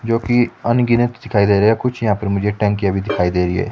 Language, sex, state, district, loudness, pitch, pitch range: Hindi, male, Himachal Pradesh, Shimla, -17 LUFS, 105 Hz, 100-120 Hz